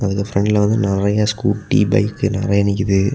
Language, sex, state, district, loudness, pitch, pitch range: Tamil, male, Tamil Nadu, Kanyakumari, -17 LUFS, 100 Hz, 100-105 Hz